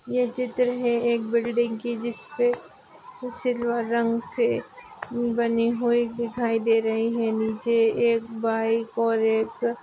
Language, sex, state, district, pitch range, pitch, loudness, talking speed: Hindi, female, Maharashtra, Nagpur, 230-240 Hz, 235 Hz, -25 LUFS, 145 wpm